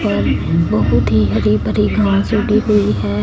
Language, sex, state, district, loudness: Hindi, female, Punjab, Fazilka, -15 LUFS